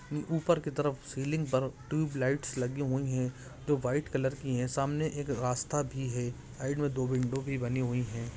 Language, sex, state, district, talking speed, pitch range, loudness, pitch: Hindi, male, Jharkhand, Sahebganj, 210 wpm, 125-145 Hz, -33 LUFS, 135 Hz